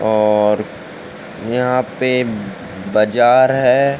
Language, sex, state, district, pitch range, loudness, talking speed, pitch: Hindi, male, Uttar Pradesh, Ghazipur, 105-125 Hz, -15 LUFS, 75 wpm, 110 Hz